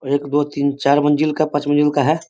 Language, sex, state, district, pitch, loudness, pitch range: Hindi, male, Bihar, Sitamarhi, 145 Hz, -17 LUFS, 140-150 Hz